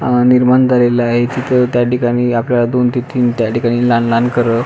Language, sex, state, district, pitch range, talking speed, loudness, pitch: Marathi, male, Maharashtra, Pune, 120-125 Hz, 220 wpm, -13 LUFS, 120 Hz